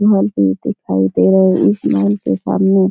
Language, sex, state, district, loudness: Hindi, female, Bihar, Jahanabad, -14 LUFS